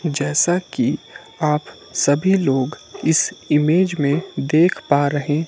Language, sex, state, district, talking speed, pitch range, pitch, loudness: Hindi, male, Himachal Pradesh, Shimla, 120 wpm, 145-170 Hz, 150 Hz, -19 LUFS